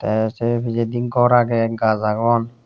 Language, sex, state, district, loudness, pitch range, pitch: Chakma, male, Tripura, Unakoti, -19 LUFS, 115-120 Hz, 115 Hz